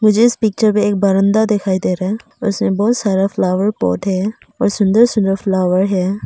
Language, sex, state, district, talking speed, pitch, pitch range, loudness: Hindi, female, Arunachal Pradesh, Papum Pare, 190 wpm, 200 Hz, 190-215 Hz, -15 LUFS